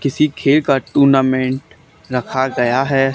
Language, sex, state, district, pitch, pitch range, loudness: Hindi, male, Haryana, Charkhi Dadri, 135 Hz, 130-140 Hz, -16 LUFS